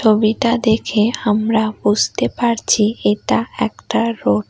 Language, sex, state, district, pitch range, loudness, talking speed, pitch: Bengali, female, West Bengal, Cooch Behar, 210-230 Hz, -17 LUFS, 120 wpm, 220 Hz